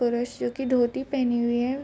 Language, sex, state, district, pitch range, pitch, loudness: Hindi, female, Bihar, Vaishali, 240-265 Hz, 245 Hz, -25 LUFS